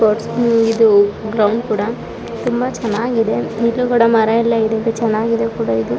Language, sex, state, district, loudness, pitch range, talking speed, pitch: Kannada, female, Karnataka, Raichur, -16 LUFS, 215-230 Hz, 110 wpm, 225 Hz